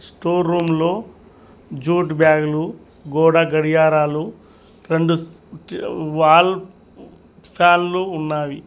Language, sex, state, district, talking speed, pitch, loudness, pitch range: Telugu, male, Telangana, Mahabubabad, 85 wpm, 165 Hz, -17 LUFS, 155-175 Hz